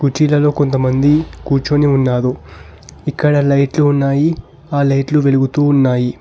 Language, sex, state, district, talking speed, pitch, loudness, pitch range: Telugu, male, Telangana, Hyderabad, 105 wpm, 140 Hz, -14 LUFS, 135-145 Hz